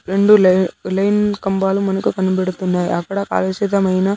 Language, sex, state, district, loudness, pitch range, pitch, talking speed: Telugu, male, Andhra Pradesh, Sri Satya Sai, -17 LUFS, 185-200 Hz, 195 Hz, 115 wpm